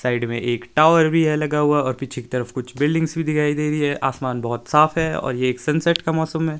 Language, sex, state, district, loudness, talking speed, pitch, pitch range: Hindi, male, Himachal Pradesh, Shimla, -20 LUFS, 270 wpm, 150 Hz, 125-155 Hz